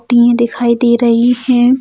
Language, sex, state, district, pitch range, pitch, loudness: Hindi, female, Bihar, Jamui, 235-245 Hz, 240 Hz, -11 LUFS